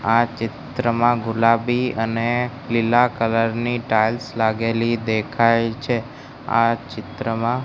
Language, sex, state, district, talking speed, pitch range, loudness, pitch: Gujarati, male, Gujarat, Gandhinagar, 110 wpm, 115-120 Hz, -20 LUFS, 115 Hz